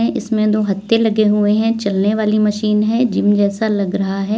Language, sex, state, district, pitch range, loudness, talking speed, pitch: Hindi, female, Uttar Pradesh, Lalitpur, 205-220 Hz, -16 LUFS, 205 wpm, 210 Hz